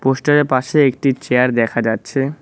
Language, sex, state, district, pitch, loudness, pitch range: Bengali, male, West Bengal, Cooch Behar, 135 Hz, -16 LUFS, 125-145 Hz